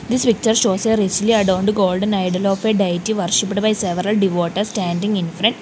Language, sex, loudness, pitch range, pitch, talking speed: English, female, -18 LUFS, 185-215 Hz, 200 Hz, 180 wpm